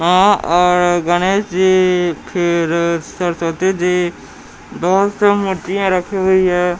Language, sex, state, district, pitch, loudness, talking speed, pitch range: Hindi, male, Bihar, Patna, 180 Hz, -15 LUFS, 115 wpm, 175-190 Hz